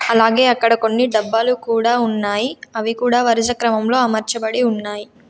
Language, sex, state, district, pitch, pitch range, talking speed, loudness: Telugu, female, Telangana, Komaram Bheem, 230 Hz, 220-240 Hz, 125 wpm, -17 LUFS